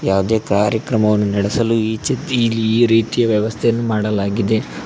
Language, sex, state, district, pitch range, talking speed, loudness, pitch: Kannada, male, Karnataka, Koppal, 105-115 Hz, 125 wpm, -17 LUFS, 110 Hz